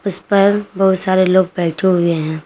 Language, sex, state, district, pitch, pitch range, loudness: Hindi, female, Jharkhand, Garhwa, 185 Hz, 175-195 Hz, -15 LUFS